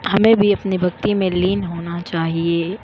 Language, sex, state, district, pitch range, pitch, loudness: Hindi, female, Uttar Pradesh, Jyotiba Phule Nagar, 170-200 Hz, 185 Hz, -18 LUFS